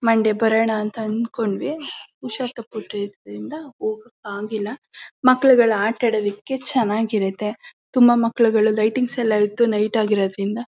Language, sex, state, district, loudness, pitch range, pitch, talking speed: Kannada, female, Karnataka, Mysore, -20 LUFS, 210-240 Hz, 225 Hz, 110 wpm